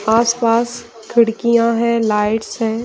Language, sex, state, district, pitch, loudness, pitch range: Hindi, female, Bihar, Jahanabad, 230 Hz, -16 LUFS, 225-235 Hz